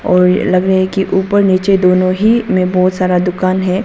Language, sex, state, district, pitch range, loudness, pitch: Hindi, female, Arunachal Pradesh, Papum Pare, 185-190 Hz, -12 LUFS, 185 Hz